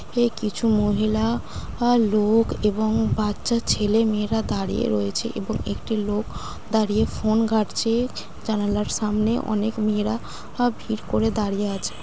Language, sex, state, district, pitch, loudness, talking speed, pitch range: Bengali, female, West Bengal, Dakshin Dinajpur, 215 Hz, -23 LUFS, 130 wpm, 210-225 Hz